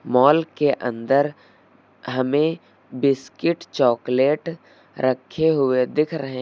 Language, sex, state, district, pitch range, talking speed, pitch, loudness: Hindi, male, Uttar Pradesh, Lucknow, 130-155 Hz, 105 wpm, 140 Hz, -21 LUFS